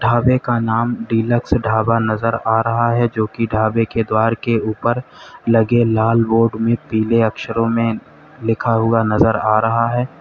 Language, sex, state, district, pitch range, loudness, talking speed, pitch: Hindi, male, Uttar Pradesh, Lalitpur, 110-115 Hz, -17 LUFS, 170 wpm, 115 Hz